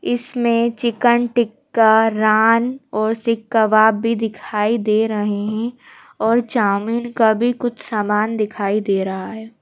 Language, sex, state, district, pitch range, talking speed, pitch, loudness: Hindi, female, Madhya Pradesh, Bhopal, 215-235 Hz, 135 wpm, 225 Hz, -18 LUFS